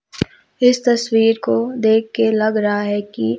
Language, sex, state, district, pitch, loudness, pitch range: Hindi, male, Madhya Pradesh, Umaria, 220 Hz, -17 LUFS, 205-230 Hz